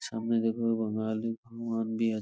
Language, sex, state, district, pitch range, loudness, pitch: Bengali, male, West Bengal, Purulia, 110-115 Hz, -31 LUFS, 115 Hz